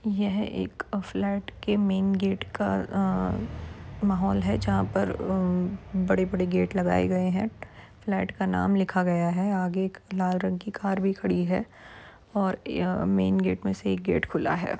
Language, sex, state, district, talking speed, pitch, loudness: Hindi, female, Uttar Pradesh, Varanasi, 180 wpm, 185 Hz, -27 LUFS